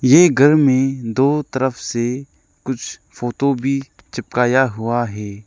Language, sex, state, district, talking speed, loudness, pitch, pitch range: Hindi, male, Arunachal Pradesh, Lower Dibang Valley, 130 wpm, -17 LUFS, 130 Hz, 120-135 Hz